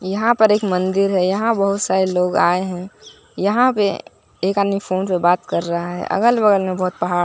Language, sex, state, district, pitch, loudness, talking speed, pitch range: Hindi, male, Bihar, Katihar, 190 Hz, -18 LUFS, 215 wpm, 180-205 Hz